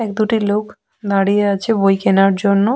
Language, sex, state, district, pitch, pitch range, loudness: Bengali, female, West Bengal, Jhargram, 205 Hz, 195-215 Hz, -16 LUFS